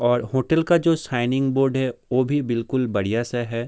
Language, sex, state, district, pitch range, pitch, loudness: Hindi, male, Bihar, Kishanganj, 120-135 Hz, 130 Hz, -22 LUFS